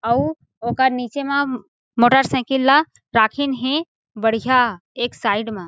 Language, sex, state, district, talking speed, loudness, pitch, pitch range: Chhattisgarhi, female, Chhattisgarh, Jashpur, 150 wpm, -19 LUFS, 255 Hz, 230-275 Hz